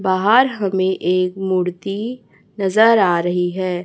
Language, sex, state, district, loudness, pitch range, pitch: Hindi, female, Chhattisgarh, Raipur, -17 LUFS, 180-205 Hz, 190 Hz